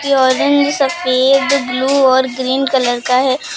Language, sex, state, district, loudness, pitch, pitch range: Hindi, female, Uttar Pradesh, Lucknow, -13 LUFS, 265 Hz, 255-275 Hz